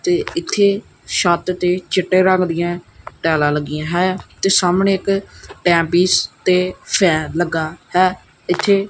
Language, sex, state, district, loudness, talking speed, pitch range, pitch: Punjabi, male, Punjab, Kapurthala, -17 LUFS, 135 wpm, 170-190 Hz, 180 Hz